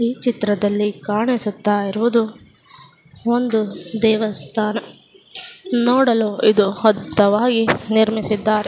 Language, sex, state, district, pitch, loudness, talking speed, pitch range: Kannada, female, Karnataka, Dakshina Kannada, 220 Hz, -18 LUFS, 70 wpm, 210-235 Hz